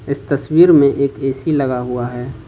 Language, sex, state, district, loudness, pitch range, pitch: Hindi, male, Jharkhand, Ranchi, -15 LUFS, 125-140 Hz, 135 Hz